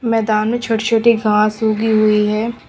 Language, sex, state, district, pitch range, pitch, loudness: Hindi, female, Punjab, Pathankot, 215-230 Hz, 220 Hz, -15 LUFS